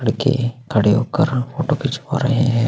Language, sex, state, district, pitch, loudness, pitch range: Hindi, male, Maharashtra, Aurangabad, 130 Hz, -19 LUFS, 120-145 Hz